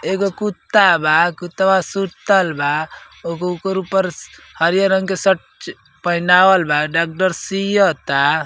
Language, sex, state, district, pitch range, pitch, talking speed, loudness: Bhojpuri, male, Uttar Pradesh, Ghazipur, 165-190 Hz, 180 Hz, 130 wpm, -16 LUFS